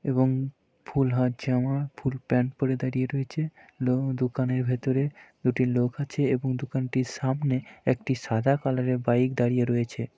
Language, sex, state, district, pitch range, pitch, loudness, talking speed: Bengali, male, West Bengal, Purulia, 125-135 Hz, 130 Hz, -27 LUFS, 155 wpm